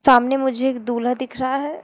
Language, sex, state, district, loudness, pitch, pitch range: Hindi, female, Uttar Pradesh, Shamli, -20 LUFS, 260 Hz, 250-265 Hz